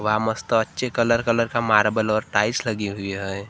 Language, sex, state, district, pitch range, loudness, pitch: Hindi, male, Maharashtra, Gondia, 105-115 Hz, -22 LUFS, 110 Hz